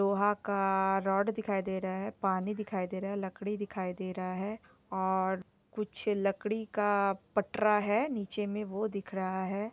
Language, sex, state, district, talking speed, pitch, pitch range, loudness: Hindi, female, Jharkhand, Sahebganj, 180 wpm, 200 Hz, 190-210 Hz, -33 LUFS